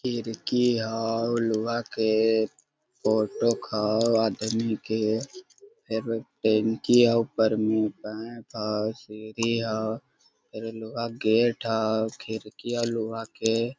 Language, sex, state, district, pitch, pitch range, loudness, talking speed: Hindi, male, Jharkhand, Sahebganj, 110 Hz, 110-115 Hz, -26 LUFS, 115 wpm